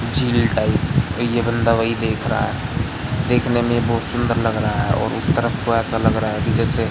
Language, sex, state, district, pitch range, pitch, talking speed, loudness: Hindi, male, Madhya Pradesh, Katni, 115-120 Hz, 115 Hz, 215 wpm, -19 LUFS